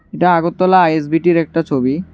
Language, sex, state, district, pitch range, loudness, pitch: Bengali, male, Tripura, West Tripura, 160-175 Hz, -14 LUFS, 165 Hz